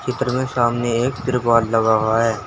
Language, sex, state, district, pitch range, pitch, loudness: Hindi, male, Uttar Pradesh, Saharanpur, 115-125 Hz, 120 Hz, -18 LUFS